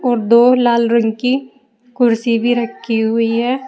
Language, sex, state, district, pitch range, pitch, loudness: Hindi, female, Uttar Pradesh, Saharanpur, 230-250 Hz, 240 Hz, -14 LUFS